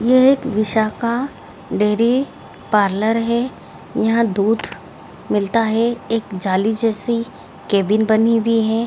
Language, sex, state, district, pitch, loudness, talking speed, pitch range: Hindi, female, Bihar, Jahanabad, 225 Hz, -18 LUFS, 120 wpm, 215-235 Hz